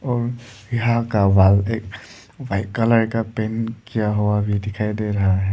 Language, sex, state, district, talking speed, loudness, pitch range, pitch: Hindi, male, Arunachal Pradesh, Lower Dibang Valley, 175 wpm, -20 LUFS, 100-115 Hz, 110 Hz